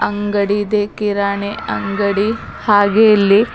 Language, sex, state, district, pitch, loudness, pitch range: Kannada, female, Karnataka, Bidar, 205 Hz, -15 LUFS, 200-210 Hz